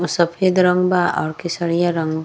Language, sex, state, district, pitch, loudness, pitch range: Bhojpuri, female, Uttar Pradesh, Gorakhpur, 175 Hz, -18 LUFS, 165-180 Hz